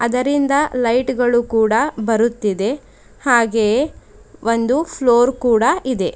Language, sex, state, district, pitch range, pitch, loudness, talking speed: Kannada, female, Karnataka, Bidar, 225-265 Hz, 240 Hz, -17 LUFS, 95 wpm